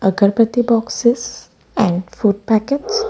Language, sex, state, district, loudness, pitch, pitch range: English, female, Gujarat, Valsad, -17 LUFS, 230 Hz, 200-245 Hz